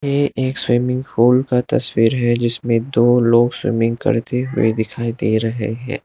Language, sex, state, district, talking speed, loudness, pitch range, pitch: Hindi, male, Arunachal Pradesh, Lower Dibang Valley, 170 wpm, -16 LUFS, 115-130 Hz, 120 Hz